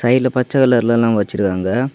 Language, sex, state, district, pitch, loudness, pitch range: Tamil, male, Tamil Nadu, Kanyakumari, 120 Hz, -16 LUFS, 105-130 Hz